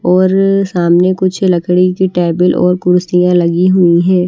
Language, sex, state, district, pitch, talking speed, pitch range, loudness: Hindi, female, Haryana, Charkhi Dadri, 180 Hz, 155 wpm, 175-185 Hz, -11 LUFS